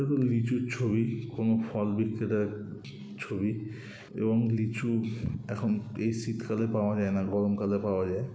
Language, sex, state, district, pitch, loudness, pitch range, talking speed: Bengali, male, West Bengal, Kolkata, 110 Hz, -30 LUFS, 105-115 Hz, 145 wpm